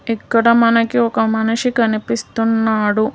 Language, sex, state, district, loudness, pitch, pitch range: Telugu, female, Telangana, Hyderabad, -16 LUFS, 230 Hz, 220-230 Hz